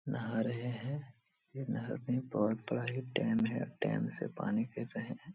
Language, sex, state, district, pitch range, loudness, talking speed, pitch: Hindi, male, Bihar, Supaul, 120-175 Hz, -37 LUFS, 170 wpm, 130 Hz